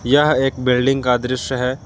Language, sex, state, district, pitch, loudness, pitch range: Hindi, male, Jharkhand, Garhwa, 130 Hz, -17 LUFS, 125-135 Hz